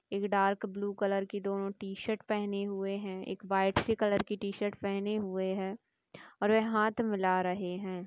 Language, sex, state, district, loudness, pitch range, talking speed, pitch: Hindi, female, Rajasthan, Nagaur, -33 LUFS, 195-205 Hz, 170 wpm, 200 Hz